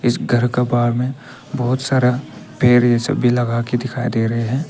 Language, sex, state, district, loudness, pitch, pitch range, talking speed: Hindi, male, Arunachal Pradesh, Papum Pare, -18 LUFS, 125 Hz, 120-125 Hz, 205 wpm